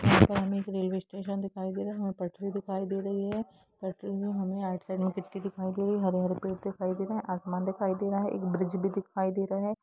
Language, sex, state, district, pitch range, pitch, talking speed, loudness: Hindi, female, Jharkhand, Jamtara, 190-200 Hz, 195 Hz, 275 wpm, -32 LUFS